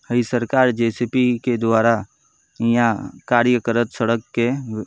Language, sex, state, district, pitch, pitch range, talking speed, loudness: Bhojpuri, male, Uttar Pradesh, Deoria, 120 Hz, 115-120 Hz, 135 wpm, -19 LUFS